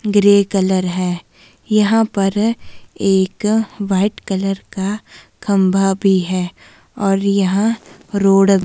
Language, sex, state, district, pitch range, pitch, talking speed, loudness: Hindi, female, Himachal Pradesh, Shimla, 190-205 Hz, 195 Hz, 110 wpm, -16 LUFS